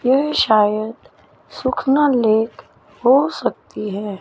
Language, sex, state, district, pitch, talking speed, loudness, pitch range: Hindi, female, Chandigarh, Chandigarh, 220 Hz, 100 wpm, -18 LUFS, 205-260 Hz